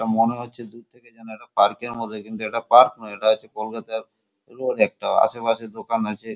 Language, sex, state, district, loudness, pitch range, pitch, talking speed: Bengali, male, West Bengal, Kolkata, -22 LUFS, 110-115 Hz, 115 Hz, 215 wpm